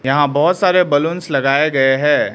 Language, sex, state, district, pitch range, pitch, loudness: Hindi, male, Arunachal Pradesh, Lower Dibang Valley, 135-170 Hz, 145 Hz, -14 LUFS